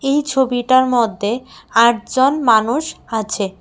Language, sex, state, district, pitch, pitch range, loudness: Bengali, female, Tripura, West Tripura, 240 Hz, 225-265 Hz, -16 LUFS